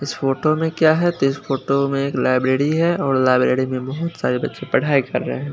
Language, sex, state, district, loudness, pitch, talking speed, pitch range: Hindi, male, Bihar, Kaimur, -19 LUFS, 140 Hz, 240 wpm, 130-155 Hz